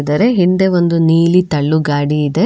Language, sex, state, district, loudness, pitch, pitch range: Kannada, female, Karnataka, Bangalore, -13 LUFS, 165 Hz, 150-180 Hz